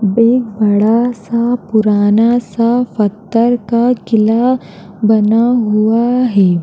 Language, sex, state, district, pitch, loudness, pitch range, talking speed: Hindi, female, Uttar Pradesh, Jalaun, 225 Hz, -13 LUFS, 210-240 Hz, 100 wpm